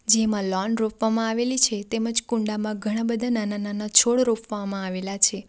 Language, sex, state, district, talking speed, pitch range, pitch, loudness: Gujarati, female, Gujarat, Valsad, 165 wpm, 205-230 Hz, 220 Hz, -23 LUFS